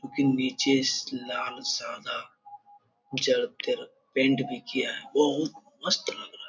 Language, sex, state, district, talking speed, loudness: Hindi, male, Bihar, Jamui, 120 wpm, -28 LUFS